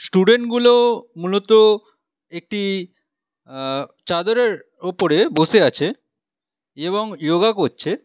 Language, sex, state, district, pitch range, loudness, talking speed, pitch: Bengali, male, West Bengal, Alipurduar, 170-235 Hz, -18 LUFS, 80 wpm, 205 Hz